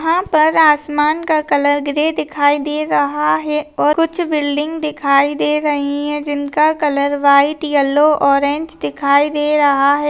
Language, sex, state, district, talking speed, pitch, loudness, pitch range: Hindi, female, Rajasthan, Nagaur, 155 wpm, 295 Hz, -15 LUFS, 285-305 Hz